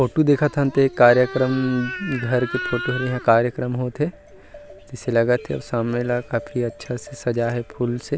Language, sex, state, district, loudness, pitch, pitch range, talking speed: Chhattisgarhi, male, Chhattisgarh, Rajnandgaon, -21 LUFS, 125 Hz, 120-135 Hz, 155 wpm